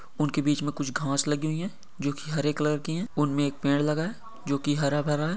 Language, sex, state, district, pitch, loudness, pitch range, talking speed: Hindi, male, Uttar Pradesh, Etah, 150 Hz, -28 LUFS, 145-160 Hz, 270 wpm